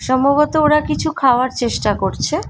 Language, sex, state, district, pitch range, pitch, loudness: Bengali, female, West Bengal, Malda, 255-300 Hz, 275 Hz, -16 LUFS